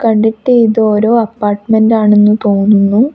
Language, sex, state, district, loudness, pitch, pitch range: Malayalam, female, Kerala, Kasaragod, -10 LUFS, 220 Hz, 210-225 Hz